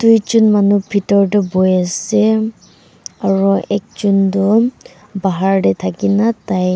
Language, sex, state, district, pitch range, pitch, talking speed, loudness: Nagamese, female, Nagaland, Dimapur, 190-215 Hz, 200 Hz, 125 wpm, -14 LUFS